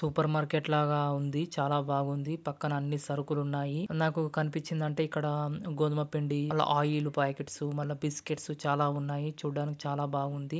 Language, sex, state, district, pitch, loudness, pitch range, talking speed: Telugu, male, Andhra Pradesh, Chittoor, 150 Hz, -32 LUFS, 145-155 Hz, 115 wpm